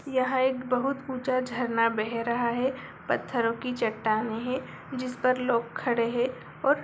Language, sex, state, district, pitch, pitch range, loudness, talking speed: Hindi, female, Bihar, Begusarai, 250 Hz, 235-260 Hz, -28 LUFS, 160 wpm